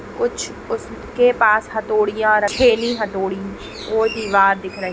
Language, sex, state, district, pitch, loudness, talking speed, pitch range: Hindi, female, Chhattisgarh, Raigarh, 215 Hz, -18 LUFS, 120 wpm, 195-225 Hz